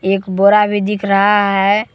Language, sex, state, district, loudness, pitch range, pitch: Hindi, male, Jharkhand, Palamu, -13 LUFS, 195-205 Hz, 200 Hz